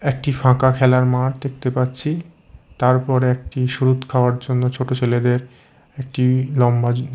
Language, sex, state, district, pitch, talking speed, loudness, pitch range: Bengali, male, Odisha, Khordha, 130 Hz, 125 wpm, -18 LUFS, 125-135 Hz